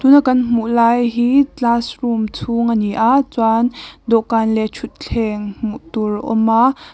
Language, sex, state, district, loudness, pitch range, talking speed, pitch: Mizo, female, Mizoram, Aizawl, -16 LUFS, 220-245 Hz, 155 wpm, 230 Hz